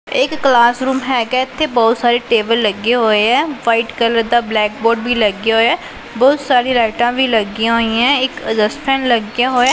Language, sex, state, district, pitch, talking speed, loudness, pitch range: Punjabi, female, Punjab, Pathankot, 235 Hz, 190 wpm, -14 LUFS, 225-255 Hz